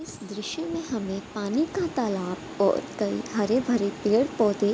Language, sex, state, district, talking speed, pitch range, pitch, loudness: Hindi, female, Bihar, Gopalganj, 150 wpm, 205-275 Hz, 220 Hz, -27 LUFS